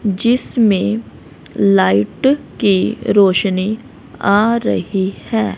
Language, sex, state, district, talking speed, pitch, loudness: Hindi, female, Haryana, Rohtak, 75 wpm, 195 Hz, -15 LUFS